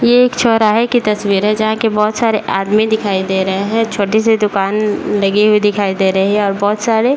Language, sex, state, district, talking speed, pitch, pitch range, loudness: Hindi, male, Bihar, Jahanabad, 235 wpm, 210 Hz, 200-225 Hz, -14 LUFS